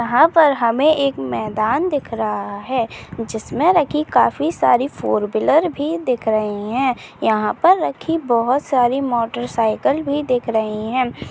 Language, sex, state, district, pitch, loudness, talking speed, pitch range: Chhattisgarhi, female, Chhattisgarh, Kabirdham, 250 Hz, -18 LUFS, 145 wpm, 220-295 Hz